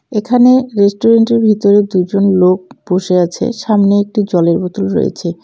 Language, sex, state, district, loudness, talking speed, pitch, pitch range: Bengali, female, West Bengal, Cooch Behar, -12 LUFS, 130 wpm, 200 Hz, 185-220 Hz